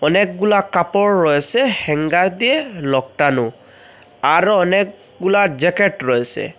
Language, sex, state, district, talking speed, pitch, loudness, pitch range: Bengali, male, Assam, Hailakandi, 90 wpm, 185 Hz, -16 LUFS, 150-200 Hz